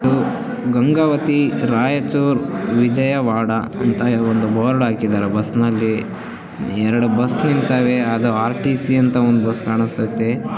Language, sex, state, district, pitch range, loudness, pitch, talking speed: Kannada, female, Karnataka, Raichur, 115-130 Hz, -17 LUFS, 120 Hz, 110 wpm